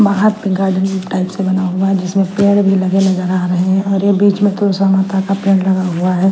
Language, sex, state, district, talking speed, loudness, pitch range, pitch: Hindi, female, Bihar, Patna, 245 wpm, -14 LUFS, 185-195 Hz, 195 Hz